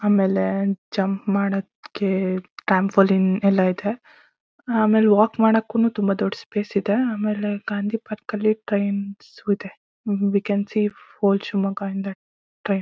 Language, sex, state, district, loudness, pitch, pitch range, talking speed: Kannada, female, Karnataka, Shimoga, -22 LUFS, 200 Hz, 195-210 Hz, 130 wpm